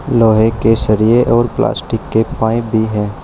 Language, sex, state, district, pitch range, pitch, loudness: Hindi, male, Uttar Pradesh, Shamli, 110-120 Hz, 115 Hz, -13 LUFS